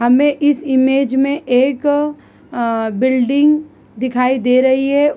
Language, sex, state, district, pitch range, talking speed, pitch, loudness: Hindi, female, Bihar, East Champaran, 250-290 Hz, 130 wpm, 265 Hz, -15 LUFS